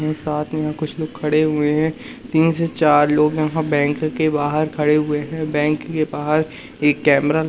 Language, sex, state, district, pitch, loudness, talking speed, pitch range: Hindi, male, Madhya Pradesh, Umaria, 155 Hz, -19 LUFS, 200 wpm, 150-155 Hz